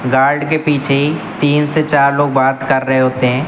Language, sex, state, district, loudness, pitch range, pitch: Hindi, male, Uttar Pradesh, Lucknow, -14 LUFS, 130-145 Hz, 140 Hz